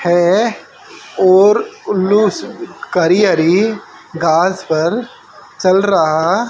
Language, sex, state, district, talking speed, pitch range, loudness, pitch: Hindi, male, Haryana, Jhajjar, 85 wpm, 175-210 Hz, -13 LUFS, 185 Hz